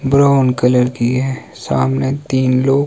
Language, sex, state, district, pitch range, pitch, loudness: Hindi, male, Himachal Pradesh, Shimla, 125-135 Hz, 130 Hz, -15 LUFS